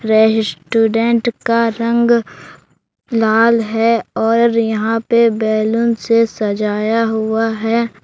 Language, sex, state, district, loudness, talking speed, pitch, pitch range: Hindi, male, Jharkhand, Deoghar, -15 LUFS, 95 wpm, 225 Hz, 220-230 Hz